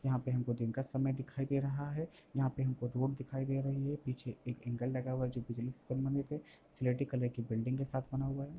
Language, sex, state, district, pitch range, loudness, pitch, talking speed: Bhojpuri, male, Uttar Pradesh, Gorakhpur, 125-135 Hz, -38 LUFS, 130 Hz, 260 wpm